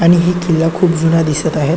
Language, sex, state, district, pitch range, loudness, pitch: Marathi, male, Maharashtra, Chandrapur, 160-175 Hz, -13 LUFS, 165 Hz